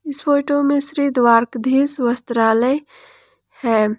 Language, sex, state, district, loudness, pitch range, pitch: Hindi, female, Jharkhand, Ranchi, -17 LUFS, 240-290 Hz, 275 Hz